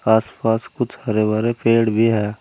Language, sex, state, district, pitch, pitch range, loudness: Hindi, male, Uttar Pradesh, Saharanpur, 110 Hz, 110-115 Hz, -19 LUFS